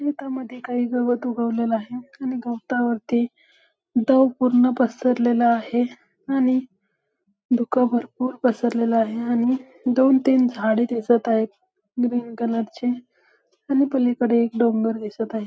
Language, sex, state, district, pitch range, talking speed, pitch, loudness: Marathi, female, Maharashtra, Solapur, 235-255 Hz, 120 wpm, 245 Hz, -22 LUFS